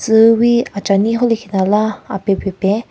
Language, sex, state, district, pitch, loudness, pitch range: Rengma, female, Nagaland, Kohima, 210 Hz, -15 LUFS, 195-230 Hz